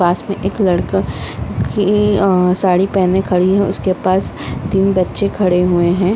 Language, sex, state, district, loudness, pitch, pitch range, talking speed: Hindi, female, Bihar, Saharsa, -15 LUFS, 185 Hz, 180-195 Hz, 185 wpm